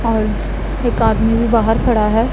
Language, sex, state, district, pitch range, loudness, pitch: Hindi, female, Punjab, Pathankot, 220-230 Hz, -16 LUFS, 225 Hz